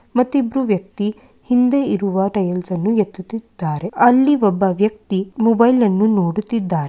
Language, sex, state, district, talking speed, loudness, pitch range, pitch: Kannada, female, Karnataka, Mysore, 105 wpm, -17 LUFS, 190-240 Hz, 210 Hz